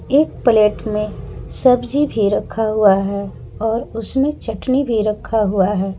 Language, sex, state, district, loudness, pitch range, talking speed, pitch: Hindi, female, Jharkhand, Garhwa, -17 LUFS, 205-250 Hz, 150 wpm, 220 Hz